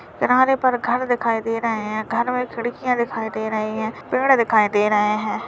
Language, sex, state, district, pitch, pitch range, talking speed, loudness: Hindi, male, Uttarakhand, Uttarkashi, 230 Hz, 215-245 Hz, 210 wpm, -20 LUFS